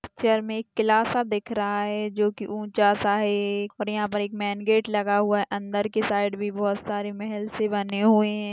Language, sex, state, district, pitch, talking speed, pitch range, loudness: Hindi, female, Maharashtra, Aurangabad, 210 Hz, 220 wpm, 205-215 Hz, -25 LUFS